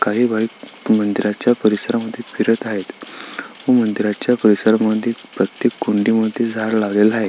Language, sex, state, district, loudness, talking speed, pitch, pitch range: Marathi, male, Maharashtra, Sindhudurg, -18 LUFS, 130 wpm, 110 Hz, 105-115 Hz